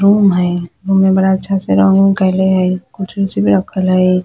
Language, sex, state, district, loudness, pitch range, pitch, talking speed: Bajjika, female, Bihar, Vaishali, -13 LUFS, 180-195 Hz, 190 Hz, 195 wpm